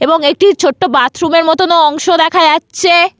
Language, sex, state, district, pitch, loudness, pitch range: Bengali, female, West Bengal, Paschim Medinipur, 330 Hz, -10 LUFS, 320-355 Hz